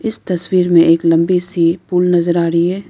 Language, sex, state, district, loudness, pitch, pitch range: Hindi, female, Arunachal Pradesh, Lower Dibang Valley, -14 LUFS, 175 Hz, 170-180 Hz